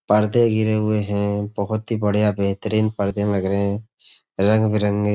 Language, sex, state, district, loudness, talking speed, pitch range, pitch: Hindi, male, Uttar Pradesh, Budaun, -20 LUFS, 175 wpm, 100-110 Hz, 105 Hz